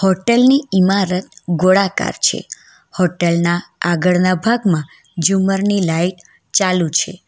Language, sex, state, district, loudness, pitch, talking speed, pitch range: Gujarati, female, Gujarat, Valsad, -16 LUFS, 185 Hz, 115 wpm, 175-195 Hz